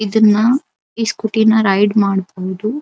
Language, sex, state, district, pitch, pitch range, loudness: Kannada, female, Karnataka, Dharwad, 215 Hz, 200-220 Hz, -15 LUFS